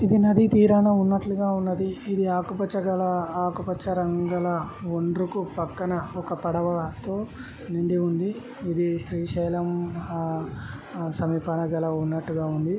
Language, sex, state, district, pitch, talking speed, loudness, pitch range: Telugu, male, Telangana, Karimnagar, 175 Hz, 115 wpm, -25 LUFS, 170-190 Hz